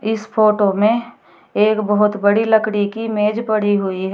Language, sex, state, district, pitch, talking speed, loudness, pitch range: Hindi, female, Uttar Pradesh, Shamli, 210 Hz, 175 wpm, -17 LUFS, 205-220 Hz